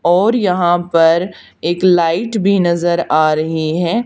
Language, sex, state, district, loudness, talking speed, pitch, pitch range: Hindi, female, Haryana, Charkhi Dadri, -14 LUFS, 150 wpm, 175 Hz, 165-185 Hz